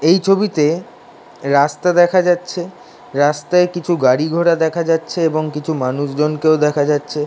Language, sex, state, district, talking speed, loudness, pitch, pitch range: Bengali, male, West Bengal, Dakshin Dinajpur, 130 wpm, -16 LUFS, 160 Hz, 150-180 Hz